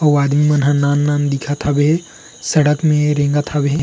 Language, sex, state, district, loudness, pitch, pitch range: Chhattisgarhi, male, Chhattisgarh, Rajnandgaon, -15 LUFS, 145 Hz, 145-150 Hz